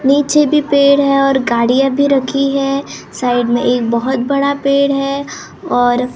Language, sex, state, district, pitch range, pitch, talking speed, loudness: Hindi, male, Maharashtra, Gondia, 245-280 Hz, 275 Hz, 165 wpm, -13 LUFS